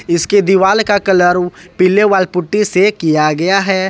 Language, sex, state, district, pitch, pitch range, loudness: Hindi, male, Jharkhand, Ranchi, 190 Hz, 180-200 Hz, -12 LUFS